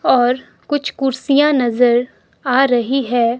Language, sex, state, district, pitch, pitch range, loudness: Hindi, male, Himachal Pradesh, Shimla, 255 Hz, 245-275 Hz, -16 LUFS